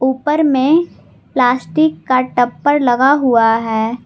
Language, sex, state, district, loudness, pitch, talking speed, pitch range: Hindi, female, Jharkhand, Garhwa, -14 LUFS, 260 Hz, 120 wpm, 245-290 Hz